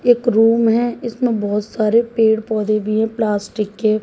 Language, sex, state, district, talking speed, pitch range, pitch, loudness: Hindi, female, Haryana, Jhajjar, 180 wpm, 215-230 Hz, 220 Hz, -17 LUFS